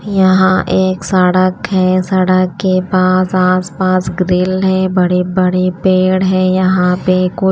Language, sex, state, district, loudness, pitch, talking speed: Hindi, female, Himachal Pradesh, Shimla, -12 LUFS, 185 Hz, 135 wpm